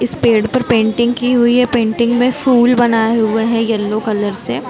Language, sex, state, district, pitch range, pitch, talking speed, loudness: Hindi, female, Chhattisgarh, Bilaspur, 220-245 Hz, 230 Hz, 205 wpm, -14 LUFS